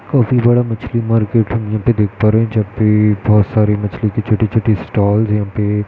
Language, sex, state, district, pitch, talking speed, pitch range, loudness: Hindi, male, Uttar Pradesh, Jyotiba Phule Nagar, 110 Hz, 255 wpm, 105-115 Hz, -14 LUFS